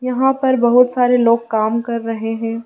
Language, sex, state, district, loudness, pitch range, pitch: Hindi, female, Madhya Pradesh, Dhar, -16 LUFS, 230-250 Hz, 235 Hz